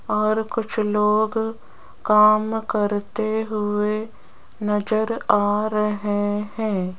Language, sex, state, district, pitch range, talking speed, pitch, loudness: Hindi, female, Rajasthan, Jaipur, 210-220 Hz, 85 wpm, 215 Hz, -22 LUFS